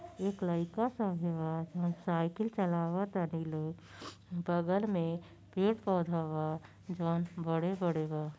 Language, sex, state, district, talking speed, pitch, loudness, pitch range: Bhojpuri, female, Uttar Pradesh, Gorakhpur, 95 wpm, 170 Hz, -35 LUFS, 165-185 Hz